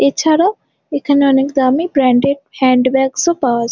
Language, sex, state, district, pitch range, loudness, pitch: Bengali, female, West Bengal, Jalpaiguri, 255-285 Hz, -14 LUFS, 270 Hz